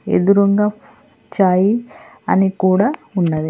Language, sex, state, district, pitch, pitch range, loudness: Telugu, female, Telangana, Hyderabad, 200 Hz, 185-210 Hz, -16 LUFS